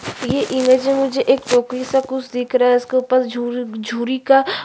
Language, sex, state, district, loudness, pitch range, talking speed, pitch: Hindi, female, Uttarakhand, Tehri Garhwal, -18 LUFS, 245-265 Hz, 220 wpm, 255 Hz